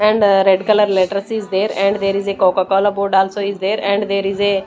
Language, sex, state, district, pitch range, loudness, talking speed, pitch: English, female, Chandigarh, Chandigarh, 195-205 Hz, -16 LUFS, 260 wpm, 200 Hz